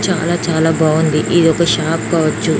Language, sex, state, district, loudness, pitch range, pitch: Telugu, female, Andhra Pradesh, Chittoor, -14 LUFS, 160-170 Hz, 165 Hz